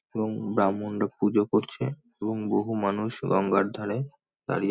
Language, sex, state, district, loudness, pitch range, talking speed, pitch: Bengali, male, West Bengal, North 24 Parganas, -28 LUFS, 100-110 Hz, 125 wpm, 105 Hz